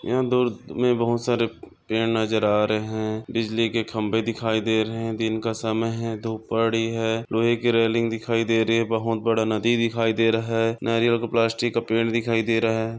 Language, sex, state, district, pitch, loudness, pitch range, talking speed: Hindi, male, Maharashtra, Chandrapur, 115 Hz, -23 LUFS, 110-115 Hz, 215 wpm